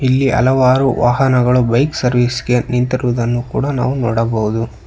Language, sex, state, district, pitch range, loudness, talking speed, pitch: Kannada, male, Karnataka, Bangalore, 120-130 Hz, -15 LUFS, 125 wpm, 125 Hz